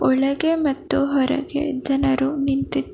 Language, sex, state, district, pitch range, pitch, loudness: Kannada, female, Karnataka, Bangalore, 270-290 Hz, 280 Hz, -21 LUFS